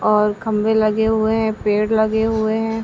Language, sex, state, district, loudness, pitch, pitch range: Hindi, female, Uttar Pradesh, Ghazipur, -18 LUFS, 220 Hz, 215-220 Hz